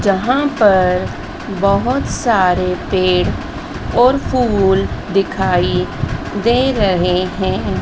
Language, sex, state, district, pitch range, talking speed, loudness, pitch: Hindi, female, Madhya Pradesh, Dhar, 180-205 Hz, 85 wpm, -15 LUFS, 190 Hz